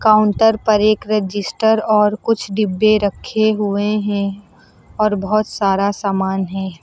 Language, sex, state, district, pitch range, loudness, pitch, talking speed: Hindi, female, Uttar Pradesh, Lucknow, 200-215 Hz, -17 LUFS, 210 Hz, 130 wpm